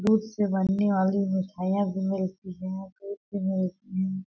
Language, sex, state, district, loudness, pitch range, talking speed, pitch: Hindi, female, Chhattisgarh, Balrampur, -28 LUFS, 190-200 Hz, 165 wpm, 190 Hz